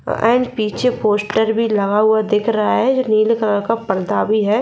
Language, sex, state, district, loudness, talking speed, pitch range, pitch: Hindi, female, Jharkhand, Sahebganj, -16 LUFS, 210 wpm, 210-230 Hz, 215 Hz